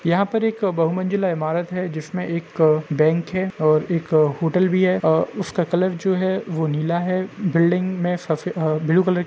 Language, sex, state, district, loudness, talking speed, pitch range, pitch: Hindi, male, Jharkhand, Sahebganj, -21 LUFS, 185 wpm, 160-185 Hz, 175 Hz